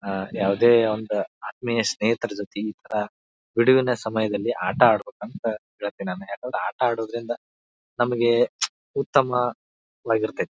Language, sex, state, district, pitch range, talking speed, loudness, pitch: Kannada, male, Karnataka, Bijapur, 100-120 Hz, 90 wpm, -24 LUFS, 110 Hz